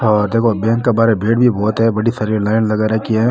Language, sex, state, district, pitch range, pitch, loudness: Rajasthani, male, Rajasthan, Nagaur, 110-115 Hz, 110 Hz, -15 LUFS